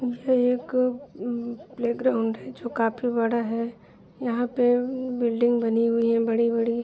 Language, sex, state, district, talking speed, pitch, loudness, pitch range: Hindi, female, Jharkhand, Jamtara, 150 wpm, 240 Hz, -25 LUFS, 230-250 Hz